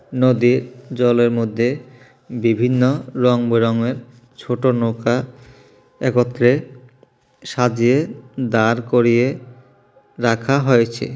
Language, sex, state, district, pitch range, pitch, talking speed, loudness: Bengali, male, Tripura, South Tripura, 120-130 Hz, 125 Hz, 70 wpm, -18 LUFS